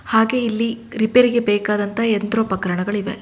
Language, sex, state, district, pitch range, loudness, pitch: Kannada, female, Karnataka, Shimoga, 205-230 Hz, -19 LUFS, 220 Hz